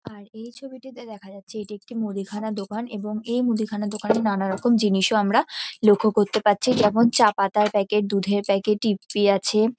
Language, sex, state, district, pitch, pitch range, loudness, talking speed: Bengali, female, West Bengal, North 24 Parganas, 210 Hz, 205-220 Hz, -22 LUFS, 165 wpm